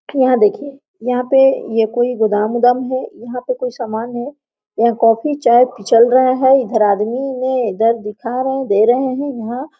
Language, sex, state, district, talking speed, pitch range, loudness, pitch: Hindi, female, Jharkhand, Sahebganj, 190 wpm, 230-260 Hz, -15 LUFS, 245 Hz